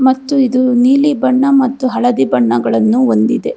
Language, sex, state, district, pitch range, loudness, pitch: Kannada, female, Karnataka, Bangalore, 240-265 Hz, -12 LUFS, 255 Hz